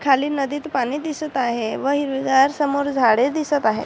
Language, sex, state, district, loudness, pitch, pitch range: Marathi, female, Maharashtra, Chandrapur, -20 LUFS, 280 Hz, 265-290 Hz